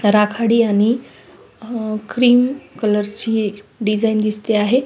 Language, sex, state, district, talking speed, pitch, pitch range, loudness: Marathi, female, Maharashtra, Sindhudurg, 100 wpm, 215 Hz, 210-230 Hz, -17 LUFS